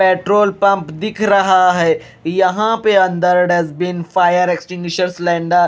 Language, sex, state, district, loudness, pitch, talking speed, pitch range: Hindi, male, Punjab, Kapurthala, -15 LUFS, 180 Hz, 140 wpm, 175-195 Hz